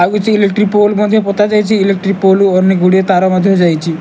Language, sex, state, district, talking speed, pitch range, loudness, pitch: Odia, male, Odisha, Malkangiri, 195 wpm, 185-210 Hz, -11 LUFS, 195 Hz